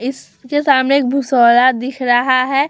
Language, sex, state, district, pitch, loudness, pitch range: Hindi, female, Bihar, Vaishali, 260 Hz, -13 LUFS, 255-275 Hz